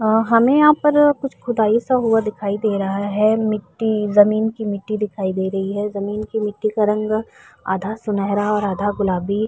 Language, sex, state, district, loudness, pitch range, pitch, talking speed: Urdu, female, Uttar Pradesh, Budaun, -19 LUFS, 200-220 Hz, 215 Hz, 190 wpm